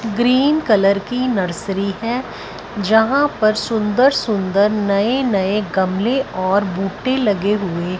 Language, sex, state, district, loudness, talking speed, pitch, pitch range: Hindi, female, Punjab, Fazilka, -17 LUFS, 120 wpm, 210 Hz, 195-245 Hz